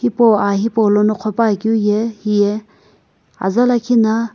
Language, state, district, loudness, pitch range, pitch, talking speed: Sumi, Nagaland, Kohima, -15 LUFS, 210-230 Hz, 220 Hz, 125 wpm